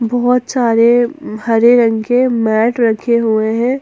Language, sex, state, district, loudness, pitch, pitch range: Hindi, female, Jharkhand, Ranchi, -13 LUFS, 235 Hz, 225-245 Hz